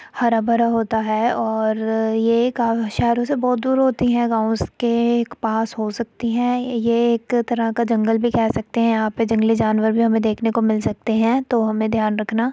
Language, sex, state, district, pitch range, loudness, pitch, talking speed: Hindi, female, Uttar Pradesh, Etah, 220-235 Hz, -19 LUFS, 230 Hz, 205 wpm